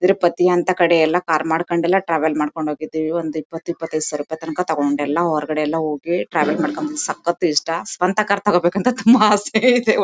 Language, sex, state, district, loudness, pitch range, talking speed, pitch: Kannada, female, Karnataka, Mysore, -19 LUFS, 155-185 Hz, 180 wpm, 170 Hz